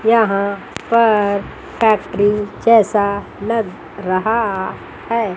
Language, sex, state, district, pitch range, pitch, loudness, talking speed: Hindi, female, Chandigarh, Chandigarh, 200-225 Hz, 210 Hz, -16 LUFS, 80 wpm